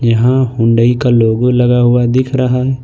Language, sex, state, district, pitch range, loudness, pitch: Hindi, male, Jharkhand, Ranchi, 120-125 Hz, -11 LUFS, 125 Hz